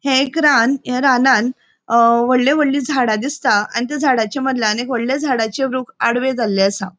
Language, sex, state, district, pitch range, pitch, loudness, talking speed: Konkani, female, Goa, North and South Goa, 230-270 Hz, 255 Hz, -16 LUFS, 180 wpm